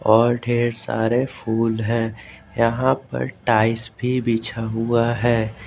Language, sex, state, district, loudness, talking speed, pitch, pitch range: Hindi, male, Jharkhand, Garhwa, -21 LUFS, 115 wpm, 115 Hz, 110-120 Hz